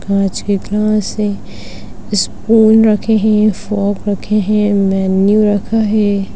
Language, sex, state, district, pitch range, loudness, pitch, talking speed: Hindi, male, Bihar, Darbhanga, 200-215 Hz, -13 LUFS, 210 Hz, 125 wpm